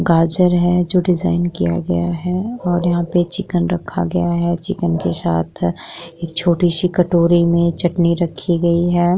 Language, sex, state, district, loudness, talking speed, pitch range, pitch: Hindi, female, Uttar Pradesh, Jyotiba Phule Nagar, -17 LUFS, 165 wpm, 170-180 Hz, 175 Hz